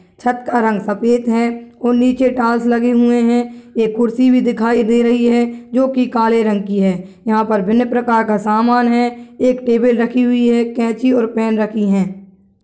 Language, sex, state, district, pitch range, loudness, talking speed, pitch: Angika, female, Bihar, Madhepura, 220-240 Hz, -15 LUFS, 195 wpm, 235 Hz